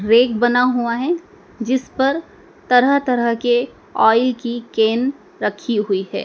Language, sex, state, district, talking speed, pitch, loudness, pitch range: Hindi, male, Madhya Pradesh, Dhar, 145 wpm, 245 Hz, -18 LUFS, 235-260 Hz